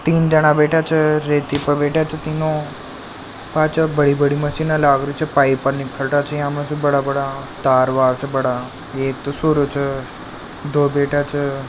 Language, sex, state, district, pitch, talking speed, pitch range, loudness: Marwari, male, Rajasthan, Nagaur, 145 Hz, 180 wpm, 140-150 Hz, -17 LUFS